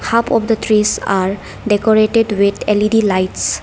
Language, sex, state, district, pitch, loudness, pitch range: English, female, Arunachal Pradesh, Lower Dibang Valley, 210 Hz, -15 LUFS, 200-225 Hz